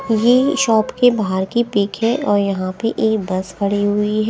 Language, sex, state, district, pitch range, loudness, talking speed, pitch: Hindi, female, Punjab, Kapurthala, 200-235 Hz, -17 LUFS, 210 wpm, 215 Hz